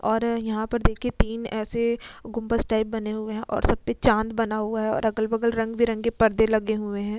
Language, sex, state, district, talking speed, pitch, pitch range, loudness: Hindi, female, Uttar Pradesh, Etah, 225 wpm, 220 Hz, 220-230 Hz, -25 LUFS